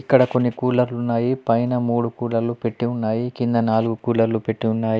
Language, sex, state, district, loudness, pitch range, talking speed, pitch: Telugu, male, Telangana, Adilabad, -21 LUFS, 115-125 Hz, 170 wpm, 120 Hz